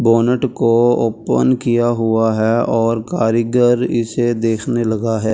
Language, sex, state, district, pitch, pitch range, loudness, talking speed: Hindi, male, Delhi, New Delhi, 115 Hz, 115-120 Hz, -16 LUFS, 145 wpm